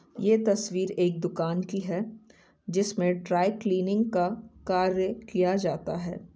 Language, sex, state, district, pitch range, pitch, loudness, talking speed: Hindi, female, Bihar, Saran, 180-205 Hz, 190 Hz, -28 LUFS, 140 wpm